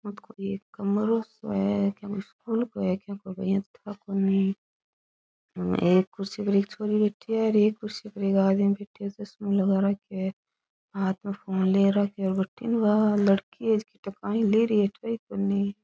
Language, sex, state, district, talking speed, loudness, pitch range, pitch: Rajasthani, female, Rajasthan, Churu, 200 wpm, -26 LUFS, 195-210 Hz, 200 Hz